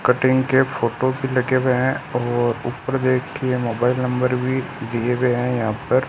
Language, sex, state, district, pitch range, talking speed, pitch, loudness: Hindi, male, Rajasthan, Bikaner, 120-130 Hz, 175 wpm, 125 Hz, -20 LUFS